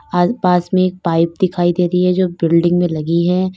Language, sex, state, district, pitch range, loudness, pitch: Hindi, female, Uttar Pradesh, Lalitpur, 170-185 Hz, -15 LUFS, 175 Hz